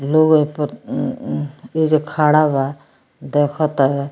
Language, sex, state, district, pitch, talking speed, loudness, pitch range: Bhojpuri, female, Bihar, Muzaffarpur, 150 Hz, 115 wpm, -18 LUFS, 140-155 Hz